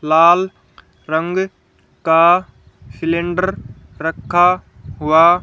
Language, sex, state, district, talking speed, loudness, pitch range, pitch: Hindi, female, Haryana, Charkhi Dadri, 65 wpm, -16 LUFS, 160-180 Hz, 170 Hz